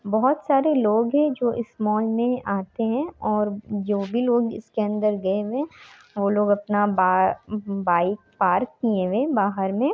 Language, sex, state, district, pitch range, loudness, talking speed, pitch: Hindi, female, Bihar, Darbhanga, 200-240 Hz, -23 LUFS, 175 wpm, 215 Hz